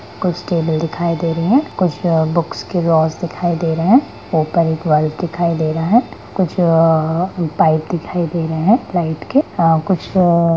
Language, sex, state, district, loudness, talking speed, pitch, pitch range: Hindi, female, Bihar, Darbhanga, -16 LUFS, 185 wpm, 170 Hz, 160-180 Hz